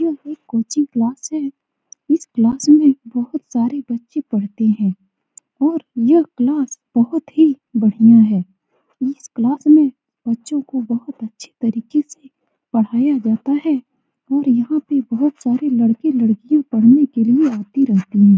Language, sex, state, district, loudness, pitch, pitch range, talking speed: Hindi, female, Bihar, Saran, -17 LUFS, 260 Hz, 230-290 Hz, 145 wpm